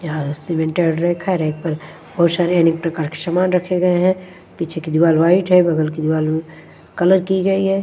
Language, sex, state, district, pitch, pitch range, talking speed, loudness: Hindi, female, Punjab, Kapurthala, 170 Hz, 160-180 Hz, 205 wpm, -17 LUFS